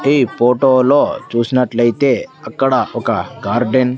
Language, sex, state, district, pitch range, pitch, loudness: Telugu, male, Andhra Pradesh, Sri Satya Sai, 120-135 Hz, 125 Hz, -15 LUFS